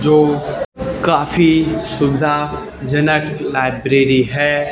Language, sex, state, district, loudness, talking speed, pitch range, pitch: Hindi, male, Haryana, Charkhi Dadri, -16 LUFS, 75 wpm, 140-150 Hz, 145 Hz